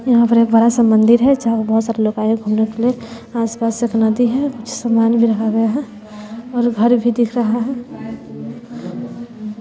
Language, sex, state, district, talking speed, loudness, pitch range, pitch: Hindi, female, Bihar, West Champaran, 205 wpm, -16 LUFS, 220-240 Hz, 230 Hz